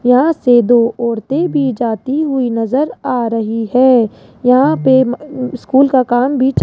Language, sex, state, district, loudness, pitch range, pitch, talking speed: Hindi, female, Rajasthan, Jaipur, -13 LUFS, 240-270 Hz, 255 Hz, 170 wpm